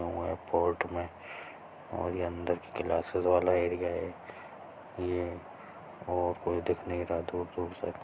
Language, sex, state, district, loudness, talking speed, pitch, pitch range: Hindi, male, Chhattisgarh, Sarguja, -33 LUFS, 150 wpm, 90 Hz, 85-90 Hz